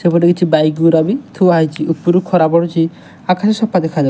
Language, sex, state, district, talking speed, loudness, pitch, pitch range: Odia, male, Odisha, Nuapada, 205 wpm, -14 LUFS, 170 Hz, 160-180 Hz